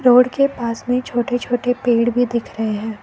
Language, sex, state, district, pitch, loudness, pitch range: Hindi, female, Arunachal Pradesh, Lower Dibang Valley, 245 Hz, -18 LUFS, 235-245 Hz